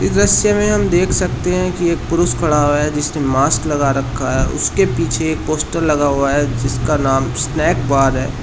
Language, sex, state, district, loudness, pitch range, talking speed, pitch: Hindi, male, Uttar Pradesh, Shamli, -16 LUFS, 130-160 Hz, 205 wpm, 145 Hz